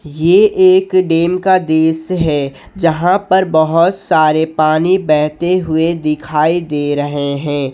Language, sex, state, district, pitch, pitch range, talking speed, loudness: Hindi, male, Jharkhand, Ranchi, 160 Hz, 150-180 Hz, 130 wpm, -13 LUFS